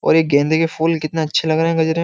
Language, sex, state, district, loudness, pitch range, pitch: Hindi, male, Uttar Pradesh, Jyotiba Phule Nagar, -17 LUFS, 155-165 Hz, 160 Hz